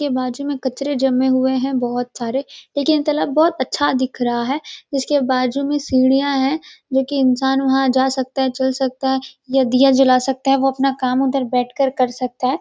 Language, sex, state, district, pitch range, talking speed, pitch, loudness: Hindi, female, Chhattisgarh, Rajnandgaon, 255-275 Hz, 210 wpm, 265 Hz, -18 LUFS